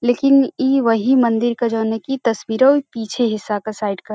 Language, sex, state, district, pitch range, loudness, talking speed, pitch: Bhojpuri, female, Uttar Pradesh, Varanasi, 220-265 Hz, -17 LUFS, 200 wpm, 235 Hz